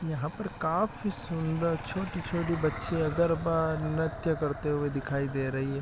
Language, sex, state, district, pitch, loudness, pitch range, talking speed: Hindi, male, Chhattisgarh, Raigarh, 160 Hz, -30 LUFS, 145-170 Hz, 155 wpm